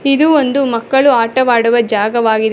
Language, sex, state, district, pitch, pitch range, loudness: Kannada, female, Karnataka, Bangalore, 235 Hz, 230-275 Hz, -12 LUFS